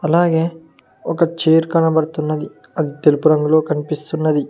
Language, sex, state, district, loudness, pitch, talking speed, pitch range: Telugu, male, Telangana, Mahabubabad, -17 LUFS, 155 Hz, 105 wpm, 150-165 Hz